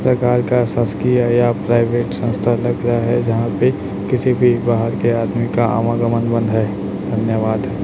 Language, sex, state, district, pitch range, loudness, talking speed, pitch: Hindi, male, Chhattisgarh, Raipur, 110-120 Hz, -17 LUFS, 170 wpm, 115 Hz